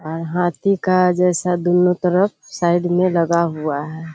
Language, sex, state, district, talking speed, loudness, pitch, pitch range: Hindi, female, Bihar, Kishanganj, 160 wpm, -18 LUFS, 175 Hz, 165-180 Hz